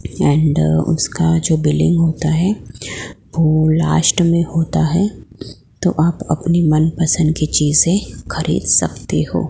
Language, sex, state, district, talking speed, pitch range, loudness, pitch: Hindi, female, Gujarat, Gandhinagar, 125 wpm, 155-170 Hz, -15 LUFS, 160 Hz